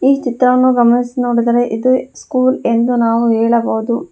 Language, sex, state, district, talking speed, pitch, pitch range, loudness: Kannada, female, Karnataka, Bangalore, 130 wpm, 240 Hz, 235-255 Hz, -14 LUFS